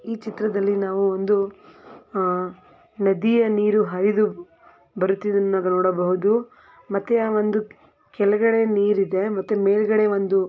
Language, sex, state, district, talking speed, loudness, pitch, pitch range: Kannada, female, Karnataka, Belgaum, 110 wpm, -21 LUFS, 200 Hz, 190-215 Hz